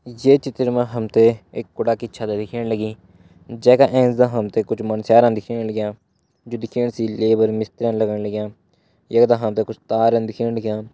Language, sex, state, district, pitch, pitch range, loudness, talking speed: Garhwali, male, Uttarakhand, Uttarkashi, 115 Hz, 110-120 Hz, -19 LUFS, 180 wpm